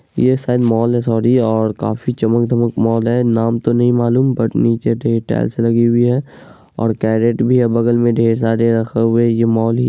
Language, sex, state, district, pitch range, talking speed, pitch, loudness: Hindi, male, Bihar, Araria, 115-120 Hz, 210 wpm, 115 Hz, -15 LUFS